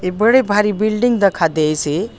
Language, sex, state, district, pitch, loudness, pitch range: Halbi, female, Chhattisgarh, Bastar, 205 Hz, -15 LUFS, 165-215 Hz